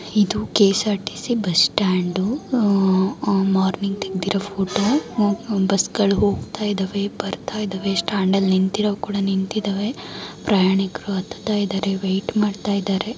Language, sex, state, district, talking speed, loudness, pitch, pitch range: Kannada, female, Karnataka, Mysore, 125 wpm, -21 LUFS, 200 Hz, 195-210 Hz